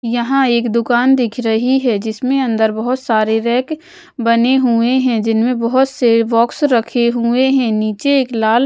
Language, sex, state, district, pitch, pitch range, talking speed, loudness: Hindi, female, Odisha, Malkangiri, 240 Hz, 230-260 Hz, 165 wpm, -14 LUFS